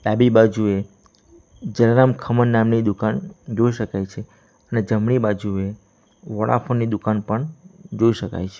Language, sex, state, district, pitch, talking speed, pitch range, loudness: Gujarati, male, Gujarat, Valsad, 110 Hz, 130 wpm, 105-120 Hz, -20 LUFS